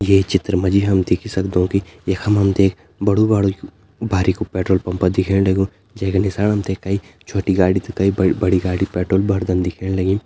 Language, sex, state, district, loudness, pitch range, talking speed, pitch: Hindi, male, Uttarakhand, Tehri Garhwal, -18 LUFS, 95-100 Hz, 200 wpm, 95 Hz